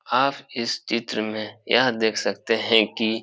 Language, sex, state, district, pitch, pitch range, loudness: Hindi, male, Bihar, Supaul, 115 Hz, 110-120 Hz, -23 LUFS